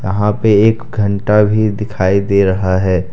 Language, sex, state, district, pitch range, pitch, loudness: Hindi, male, Jharkhand, Deoghar, 95-105 Hz, 105 Hz, -13 LUFS